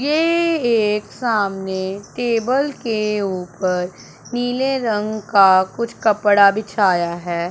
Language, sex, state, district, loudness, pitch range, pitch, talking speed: Hindi, male, Punjab, Pathankot, -18 LUFS, 190-240 Hz, 210 Hz, 105 wpm